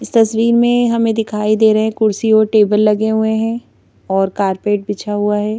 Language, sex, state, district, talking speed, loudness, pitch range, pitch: Hindi, female, Madhya Pradesh, Bhopal, 205 wpm, -14 LUFS, 210-225 Hz, 220 Hz